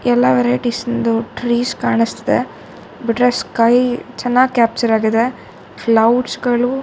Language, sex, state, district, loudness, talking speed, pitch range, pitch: Kannada, female, Karnataka, Shimoga, -16 LUFS, 115 wpm, 230-245 Hz, 240 Hz